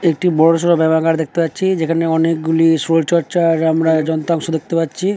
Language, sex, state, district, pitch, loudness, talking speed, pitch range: Bengali, male, West Bengal, Dakshin Dinajpur, 165 Hz, -15 LUFS, 175 wpm, 160-170 Hz